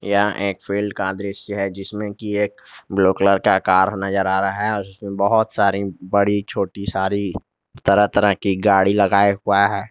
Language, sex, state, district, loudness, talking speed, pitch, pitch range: Hindi, male, Jharkhand, Garhwa, -19 LUFS, 175 wpm, 100 Hz, 95-100 Hz